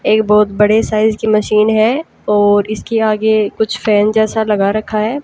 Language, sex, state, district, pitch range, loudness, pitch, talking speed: Hindi, female, Haryana, Jhajjar, 210-220 Hz, -13 LUFS, 215 Hz, 185 wpm